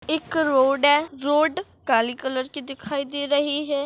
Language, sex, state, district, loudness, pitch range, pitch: Hindi, female, Maharashtra, Solapur, -22 LUFS, 270-295 Hz, 285 Hz